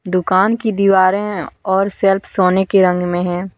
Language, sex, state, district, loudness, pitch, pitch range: Hindi, female, Jharkhand, Deoghar, -15 LUFS, 190 Hz, 185-200 Hz